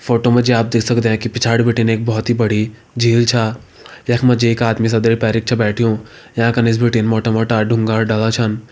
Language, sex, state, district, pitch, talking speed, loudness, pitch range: Hindi, male, Uttarakhand, Uttarkashi, 115 Hz, 225 wpm, -15 LUFS, 110-120 Hz